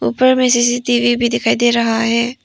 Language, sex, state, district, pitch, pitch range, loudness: Hindi, female, Arunachal Pradesh, Papum Pare, 240 Hz, 235-245 Hz, -14 LUFS